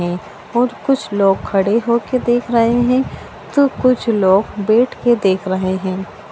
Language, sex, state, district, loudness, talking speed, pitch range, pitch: Bhojpuri, female, Bihar, Saran, -16 LUFS, 160 wpm, 195-240 Hz, 220 Hz